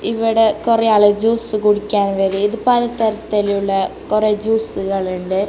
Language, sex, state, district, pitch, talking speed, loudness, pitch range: Malayalam, female, Kerala, Kasaragod, 210 Hz, 110 wpm, -16 LUFS, 200-225 Hz